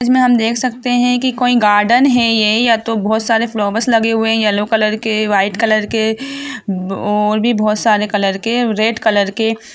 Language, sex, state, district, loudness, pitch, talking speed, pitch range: Hindi, female, Jharkhand, Jamtara, -14 LUFS, 225 Hz, 180 wpm, 215-240 Hz